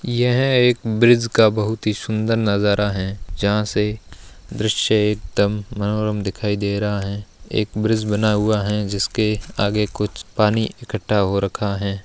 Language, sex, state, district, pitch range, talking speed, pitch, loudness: Hindi, male, Bihar, Gaya, 100-110 Hz, 155 wpm, 105 Hz, -20 LUFS